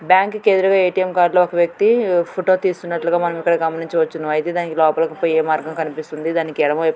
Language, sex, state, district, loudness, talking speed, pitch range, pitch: Telugu, female, Andhra Pradesh, Srikakulam, -18 LUFS, 215 wpm, 160-185 Hz, 170 Hz